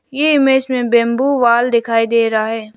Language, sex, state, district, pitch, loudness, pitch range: Hindi, female, Arunachal Pradesh, Lower Dibang Valley, 235 Hz, -14 LUFS, 230-265 Hz